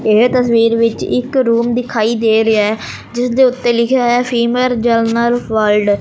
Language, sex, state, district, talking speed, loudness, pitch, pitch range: Punjabi, male, Punjab, Fazilka, 160 wpm, -13 LUFS, 235 Hz, 225-245 Hz